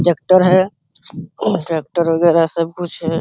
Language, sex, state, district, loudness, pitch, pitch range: Hindi, male, Uttar Pradesh, Hamirpur, -16 LUFS, 170 Hz, 165-180 Hz